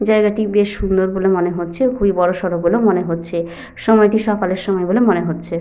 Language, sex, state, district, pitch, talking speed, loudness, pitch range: Bengali, female, Jharkhand, Sahebganj, 190 Hz, 205 wpm, -16 LUFS, 175-210 Hz